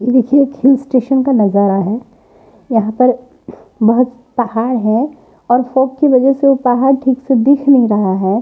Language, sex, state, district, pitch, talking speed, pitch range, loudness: Hindi, female, Punjab, Pathankot, 250 Hz, 185 wpm, 225-265 Hz, -13 LUFS